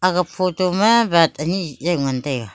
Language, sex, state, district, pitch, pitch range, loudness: Wancho, female, Arunachal Pradesh, Longding, 175 Hz, 145-185 Hz, -18 LUFS